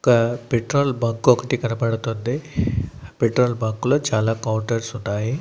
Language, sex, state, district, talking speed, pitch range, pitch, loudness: Telugu, male, Andhra Pradesh, Annamaya, 110 wpm, 115-125 Hz, 120 Hz, -21 LUFS